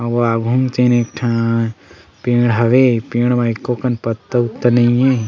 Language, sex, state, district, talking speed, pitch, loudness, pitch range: Chhattisgarhi, male, Chhattisgarh, Sarguja, 180 wpm, 120 Hz, -16 LUFS, 115-125 Hz